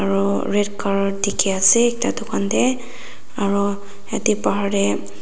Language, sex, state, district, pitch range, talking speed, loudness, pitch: Nagamese, female, Nagaland, Dimapur, 195-220 Hz, 140 wpm, -19 LUFS, 200 Hz